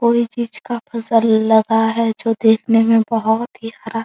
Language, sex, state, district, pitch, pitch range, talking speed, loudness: Hindi, female, Bihar, Araria, 225 Hz, 225-230 Hz, 190 wpm, -16 LUFS